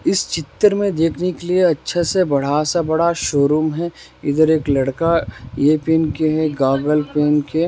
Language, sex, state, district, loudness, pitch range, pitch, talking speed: Hindi, male, Rajasthan, Nagaur, -18 LUFS, 150-170 Hz, 155 Hz, 185 wpm